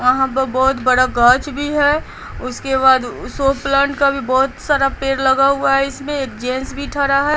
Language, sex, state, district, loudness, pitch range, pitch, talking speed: Hindi, female, Bihar, Patna, -16 LUFS, 260-280 Hz, 270 Hz, 205 wpm